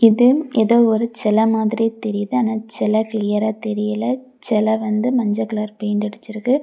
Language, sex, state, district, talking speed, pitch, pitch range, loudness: Tamil, female, Tamil Nadu, Kanyakumari, 155 wpm, 220 Hz, 215-235 Hz, -19 LUFS